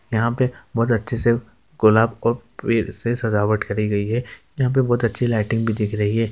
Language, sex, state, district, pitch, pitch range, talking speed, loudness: Hindi, male, Bihar, Jamui, 115 Hz, 110-120 Hz, 225 wpm, -21 LUFS